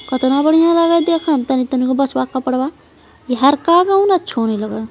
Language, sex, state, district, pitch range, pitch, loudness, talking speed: Hindi, female, Bihar, Jamui, 255-335 Hz, 275 Hz, -15 LUFS, 245 wpm